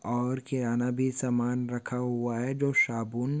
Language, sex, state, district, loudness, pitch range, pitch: Hindi, male, Maharashtra, Dhule, -29 LUFS, 120-130 Hz, 125 Hz